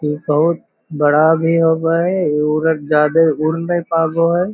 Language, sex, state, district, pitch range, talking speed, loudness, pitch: Magahi, male, Bihar, Lakhisarai, 150-165 Hz, 185 wpm, -15 LUFS, 160 Hz